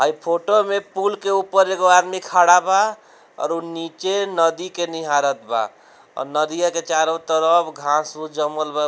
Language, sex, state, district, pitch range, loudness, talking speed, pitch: Bhojpuri, male, Bihar, Gopalganj, 155-185 Hz, -19 LUFS, 170 wpm, 165 Hz